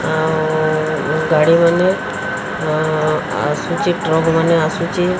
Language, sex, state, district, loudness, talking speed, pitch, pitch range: Odia, female, Odisha, Sambalpur, -16 LUFS, 105 wpm, 160 Hz, 155-170 Hz